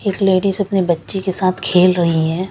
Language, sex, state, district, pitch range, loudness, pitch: Hindi, female, Chandigarh, Chandigarh, 175-195 Hz, -16 LUFS, 185 Hz